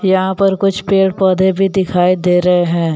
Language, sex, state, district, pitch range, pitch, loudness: Hindi, male, Jharkhand, Deoghar, 180-195 Hz, 190 Hz, -13 LUFS